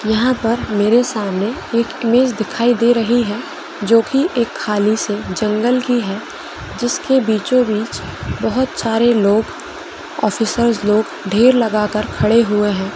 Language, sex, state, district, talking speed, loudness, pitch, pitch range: Hindi, female, Chhattisgarh, Korba, 145 wpm, -16 LUFS, 230 Hz, 210-245 Hz